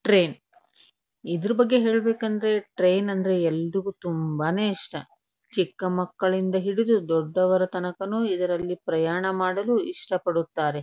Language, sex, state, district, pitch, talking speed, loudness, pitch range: Kannada, female, Karnataka, Dharwad, 185 Hz, 110 wpm, -25 LUFS, 175-210 Hz